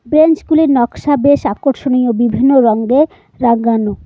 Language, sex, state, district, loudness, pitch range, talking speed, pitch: Bengali, female, West Bengal, Cooch Behar, -12 LUFS, 235-290 Hz, 105 wpm, 260 Hz